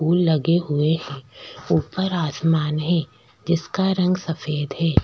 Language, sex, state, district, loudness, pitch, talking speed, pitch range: Hindi, female, Chhattisgarh, Bastar, -22 LUFS, 160 Hz, 130 wpm, 150-170 Hz